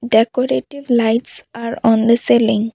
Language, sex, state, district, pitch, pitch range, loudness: English, female, Assam, Kamrup Metropolitan, 235 Hz, 225-245 Hz, -16 LUFS